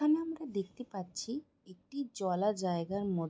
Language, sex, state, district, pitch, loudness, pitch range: Bengali, female, West Bengal, Jhargram, 200 Hz, -36 LUFS, 185-275 Hz